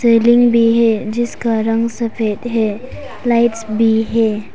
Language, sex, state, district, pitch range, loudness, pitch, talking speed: Hindi, female, Arunachal Pradesh, Papum Pare, 220-235 Hz, -15 LUFS, 230 Hz, 130 wpm